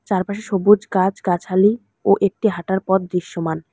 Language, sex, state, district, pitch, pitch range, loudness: Bengali, female, West Bengal, Alipurduar, 190 Hz, 180-200 Hz, -19 LUFS